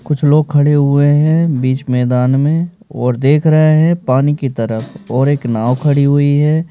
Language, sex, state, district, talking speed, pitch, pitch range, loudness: Hindi, male, Madhya Pradesh, Bhopal, 190 wpm, 145 Hz, 130-155 Hz, -13 LUFS